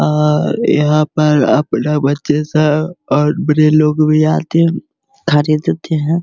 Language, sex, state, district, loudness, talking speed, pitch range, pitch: Hindi, male, Bihar, Begusarai, -13 LUFS, 135 wpm, 150-160 Hz, 155 Hz